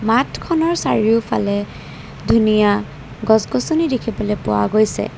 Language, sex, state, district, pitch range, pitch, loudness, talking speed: Assamese, female, Assam, Kamrup Metropolitan, 210-240 Hz, 220 Hz, -17 LUFS, 80 wpm